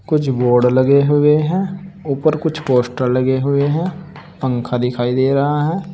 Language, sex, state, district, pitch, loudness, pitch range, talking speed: Hindi, male, Uttar Pradesh, Saharanpur, 140 Hz, -16 LUFS, 130-160 Hz, 160 wpm